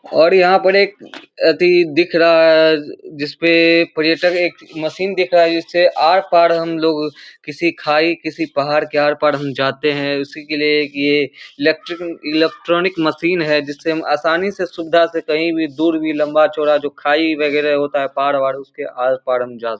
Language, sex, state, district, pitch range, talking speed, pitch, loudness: Hindi, male, Bihar, Samastipur, 150-170 Hz, 195 wpm, 155 Hz, -15 LUFS